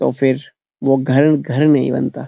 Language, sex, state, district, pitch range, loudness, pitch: Hindi, male, Uttarakhand, Uttarkashi, 135-150 Hz, -16 LUFS, 135 Hz